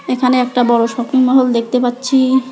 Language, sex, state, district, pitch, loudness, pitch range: Bengali, female, West Bengal, Alipurduar, 255 Hz, -14 LUFS, 245-260 Hz